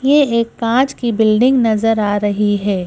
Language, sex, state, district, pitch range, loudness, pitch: Hindi, female, Madhya Pradesh, Bhopal, 205-245 Hz, -15 LUFS, 225 Hz